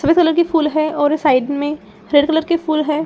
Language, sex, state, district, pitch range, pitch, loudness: Hindi, female, Bihar, Saran, 290-320 Hz, 310 Hz, -16 LUFS